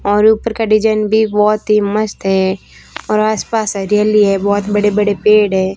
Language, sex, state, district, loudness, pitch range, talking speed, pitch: Hindi, female, Rajasthan, Barmer, -13 LUFS, 205-215 Hz, 195 wpm, 210 Hz